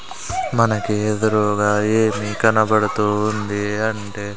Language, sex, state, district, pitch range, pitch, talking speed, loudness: Telugu, male, Andhra Pradesh, Sri Satya Sai, 105-110 Hz, 105 Hz, 80 wpm, -19 LUFS